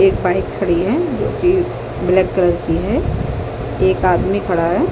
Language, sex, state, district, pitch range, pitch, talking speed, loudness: Hindi, female, Chhattisgarh, Balrampur, 140-200 Hz, 180 Hz, 170 wpm, -17 LUFS